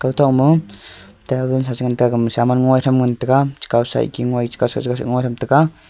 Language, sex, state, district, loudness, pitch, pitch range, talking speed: Wancho, male, Arunachal Pradesh, Longding, -17 LUFS, 125 Hz, 120-130 Hz, 165 wpm